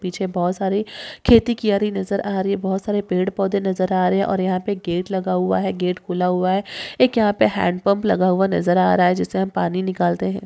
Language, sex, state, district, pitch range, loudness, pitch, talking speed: Hindi, female, Rajasthan, Nagaur, 180-200 Hz, -20 LUFS, 190 Hz, 250 wpm